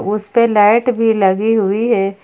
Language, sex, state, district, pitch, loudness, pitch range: Hindi, female, Jharkhand, Ranchi, 215 Hz, -14 LUFS, 200-230 Hz